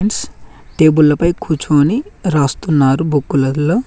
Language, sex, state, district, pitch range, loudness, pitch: Telugu, male, Telangana, Mahabubabad, 145-175 Hz, -14 LUFS, 155 Hz